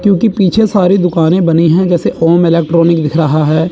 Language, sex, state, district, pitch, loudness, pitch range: Hindi, male, Chandigarh, Chandigarh, 170 Hz, -10 LUFS, 165-185 Hz